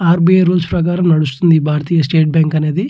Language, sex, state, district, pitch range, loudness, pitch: Telugu, male, Andhra Pradesh, Chittoor, 155-175 Hz, -13 LUFS, 165 Hz